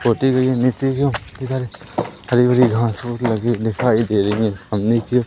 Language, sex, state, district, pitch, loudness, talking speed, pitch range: Hindi, male, Madhya Pradesh, Umaria, 120 Hz, -19 LUFS, 205 wpm, 110-125 Hz